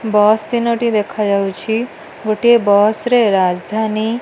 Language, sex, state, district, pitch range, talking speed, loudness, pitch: Odia, female, Odisha, Malkangiri, 210-235 Hz, 130 wpm, -15 LUFS, 215 Hz